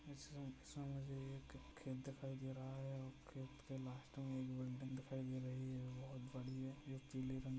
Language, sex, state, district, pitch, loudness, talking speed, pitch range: Hindi, male, Maharashtra, Chandrapur, 130 Hz, -51 LUFS, 215 wpm, 130-135 Hz